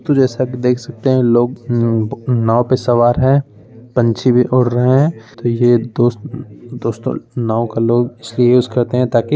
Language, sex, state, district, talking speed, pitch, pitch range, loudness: Hindi, male, Bihar, Begusarai, 190 wpm, 120 Hz, 115-125 Hz, -15 LUFS